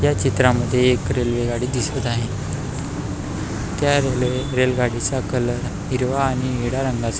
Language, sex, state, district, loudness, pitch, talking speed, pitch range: Marathi, male, Maharashtra, Pune, -21 LUFS, 125 Hz, 135 wpm, 120-130 Hz